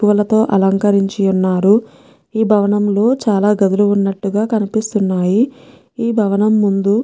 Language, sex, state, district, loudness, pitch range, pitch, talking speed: Telugu, female, Telangana, Nalgonda, -15 LUFS, 195-220 Hz, 205 Hz, 120 wpm